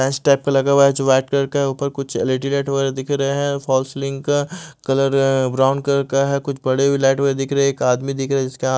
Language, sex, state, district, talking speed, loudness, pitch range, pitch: Hindi, male, Odisha, Malkangiri, 255 wpm, -18 LUFS, 135-140 Hz, 135 Hz